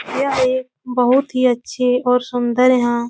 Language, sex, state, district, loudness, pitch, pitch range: Hindi, female, Uttar Pradesh, Etah, -17 LUFS, 250 Hz, 245-255 Hz